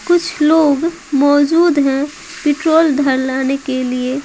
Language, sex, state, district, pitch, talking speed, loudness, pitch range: Hindi, female, Bihar, Patna, 285 Hz, 115 wpm, -14 LUFS, 270-320 Hz